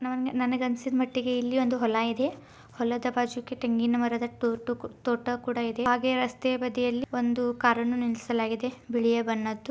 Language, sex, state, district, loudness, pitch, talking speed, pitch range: Kannada, female, Karnataka, Belgaum, -28 LUFS, 245 Hz, 140 wpm, 235-250 Hz